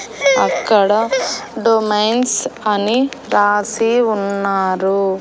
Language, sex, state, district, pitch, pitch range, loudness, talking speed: Telugu, female, Andhra Pradesh, Annamaya, 215 Hz, 200-235 Hz, -16 LUFS, 55 wpm